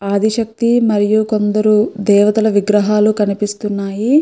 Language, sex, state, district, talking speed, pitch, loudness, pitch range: Telugu, female, Andhra Pradesh, Guntur, 100 wpm, 210 Hz, -14 LUFS, 205-220 Hz